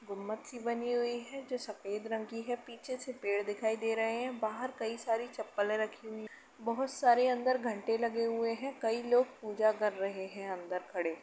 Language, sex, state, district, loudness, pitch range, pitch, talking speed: Hindi, female, Uttar Pradesh, Etah, -35 LUFS, 215-245 Hz, 230 Hz, 215 wpm